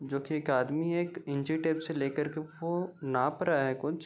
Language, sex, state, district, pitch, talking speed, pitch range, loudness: Hindi, male, Bihar, Gopalganj, 155 Hz, 220 wpm, 140-165 Hz, -32 LUFS